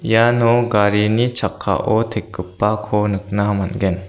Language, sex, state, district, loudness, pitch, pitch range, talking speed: Garo, female, Meghalaya, South Garo Hills, -18 LUFS, 105 Hz, 100-115 Hz, 90 wpm